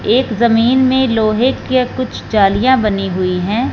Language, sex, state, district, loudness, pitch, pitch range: Hindi, female, Punjab, Fazilka, -14 LUFS, 230 Hz, 210-255 Hz